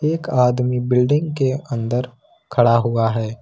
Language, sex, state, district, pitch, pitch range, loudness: Hindi, male, Jharkhand, Ranchi, 125 Hz, 115-135 Hz, -19 LUFS